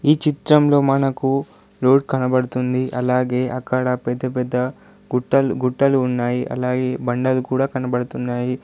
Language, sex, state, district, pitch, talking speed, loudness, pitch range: Telugu, male, Telangana, Adilabad, 130 Hz, 110 wpm, -19 LUFS, 125-135 Hz